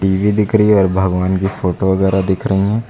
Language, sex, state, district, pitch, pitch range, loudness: Hindi, male, Uttar Pradesh, Lucknow, 95 Hz, 95-105 Hz, -15 LUFS